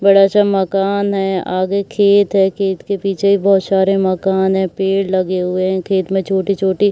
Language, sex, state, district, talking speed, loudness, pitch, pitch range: Hindi, female, Bihar, Saharsa, 175 wpm, -15 LUFS, 195 Hz, 190-200 Hz